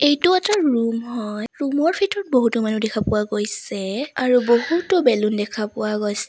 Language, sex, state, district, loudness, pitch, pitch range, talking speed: Assamese, female, Assam, Sonitpur, -20 LUFS, 235 Hz, 215-290 Hz, 170 wpm